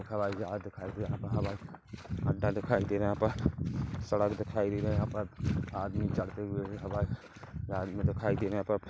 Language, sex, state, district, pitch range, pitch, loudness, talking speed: Hindi, male, Chhattisgarh, Kabirdham, 100-105 Hz, 105 Hz, -34 LUFS, 220 wpm